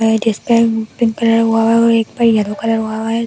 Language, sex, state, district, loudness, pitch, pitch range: Hindi, female, Delhi, New Delhi, -14 LUFS, 225 Hz, 225-230 Hz